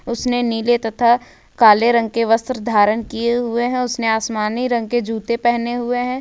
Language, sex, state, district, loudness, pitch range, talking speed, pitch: Hindi, female, Jharkhand, Ranchi, -17 LUFS, 225-240 Hz, 185 wpm, 235 Hz